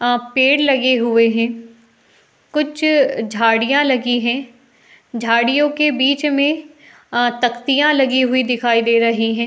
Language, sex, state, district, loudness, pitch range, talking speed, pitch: Hindi, female, Uttar Pradesh, Jalaun, -16 LUFS, 230-280 Hz, 135 wpm, 250 Hz